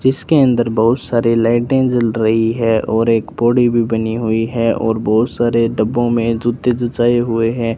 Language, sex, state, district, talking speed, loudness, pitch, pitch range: Hindi, male, Rajasthan, Bikaner, 185 wpm, -15 LUFS, 115 Hz, 115-120 Hz